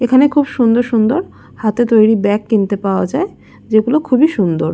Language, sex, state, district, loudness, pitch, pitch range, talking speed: Bengali, female, West Bengal, Jalpaiguri, -14 LUFS, 225 Hz, 205-270 Hz, 165 wpm